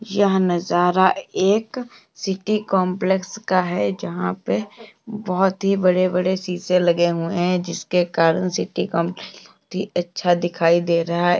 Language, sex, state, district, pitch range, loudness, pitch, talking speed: Hindi, female, Uttar Pradesh, Jalaun, 175-190 Hz, -20 LUFS, 180 Hz, 140 wpm